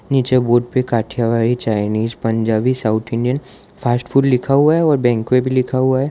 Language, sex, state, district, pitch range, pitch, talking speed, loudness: Hindi, male, Gujarat, Valsad, 115-130 Hz, 120 Hz, 195 wpm, -16 LUFS